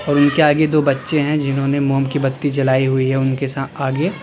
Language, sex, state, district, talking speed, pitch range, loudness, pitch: Hindi, male, Uttar Pradesh, Lalitpur, 225 wpm, 135-150 Hz, -17 LUFS, 140 Hz